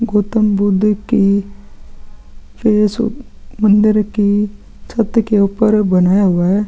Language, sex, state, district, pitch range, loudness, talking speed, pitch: Hindi, male, Chhattisgarh, Sukma, 195-215 Hz, -14 LUFS, 110 wpm, 205 Hz